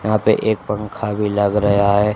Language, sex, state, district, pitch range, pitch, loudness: Hindi, male, Haryana, Charkhi Dadri, 100-105 Hz, 105 Hz, -18 LUFS